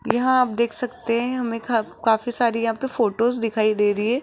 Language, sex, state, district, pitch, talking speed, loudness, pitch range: Hindi, female, Rajasthan, Jaipur, 235 Hz, 225 wpm, -22 LUFS, 225-245 Hz